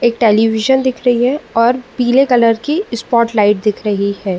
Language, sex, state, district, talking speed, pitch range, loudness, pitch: Hindi, female, Uttar Pradesh, Muzaffarnagar, 190 wpm, 215-255 Hz, -14 LUFS, 235 Hz